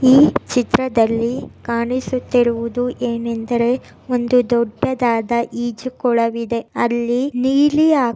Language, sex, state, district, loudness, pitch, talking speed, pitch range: Kannada, female, Karnataka, Raichur, -18 LUFS, 240 Hz, 65 wpm, 235-255 Hz